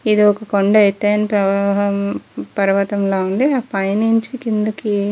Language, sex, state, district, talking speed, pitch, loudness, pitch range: Telugu, female, Andhra Pradesh, Guntur, 140 wpm, 205 Hz, -17 LUFS, 200-215 Hz